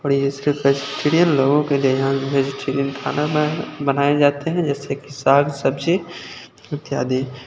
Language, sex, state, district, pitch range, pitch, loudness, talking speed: Hindi, male, Chandigarh, Chandigarh, 135-150 Hz, 140 Hz, -19 LUFS, 120 wpm